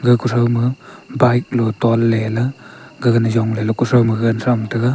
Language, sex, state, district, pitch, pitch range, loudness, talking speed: Wancho, male, Arunachal Pradesh, Longding, 120 Hz, 115-125 Hz, -17 LUFS, 145 wpm